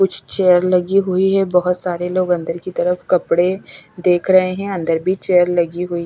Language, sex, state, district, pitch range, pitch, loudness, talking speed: Hindi, female, Chandigarh, Chandigarh, 175-185 Hz, 180 Hz, -17 LUFS, 200 wpm